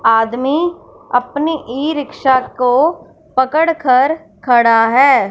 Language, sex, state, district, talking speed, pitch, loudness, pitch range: Hindi, female, Punjab, Fazilka, 100 wpm, 265 Hz, -14 LUFS, 245-305 Hz